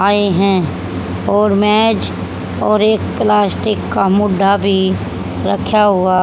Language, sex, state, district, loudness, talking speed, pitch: Hindi, female, Haryana, Charkhi Dadri, -14 LUFS, 115 wpm, 195 Hz